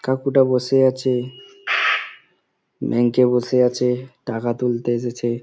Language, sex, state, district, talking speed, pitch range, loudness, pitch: Bengali, male, West Bengal, Kolkata, 120 wpm, 120-130 Hz, -20 LUFS, 125 Hz